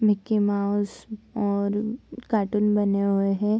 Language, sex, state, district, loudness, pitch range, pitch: Hindi, female, Bihar, Bhagalpur, -24 LUFS, 200-215 Hz, 210 Hz